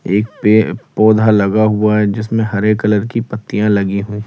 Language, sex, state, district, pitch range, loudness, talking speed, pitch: Hindi, male, Uttar Pradesh, Lalitpur, 105-110 Hz, -14 LUFS, 180 wpm, 105 Hz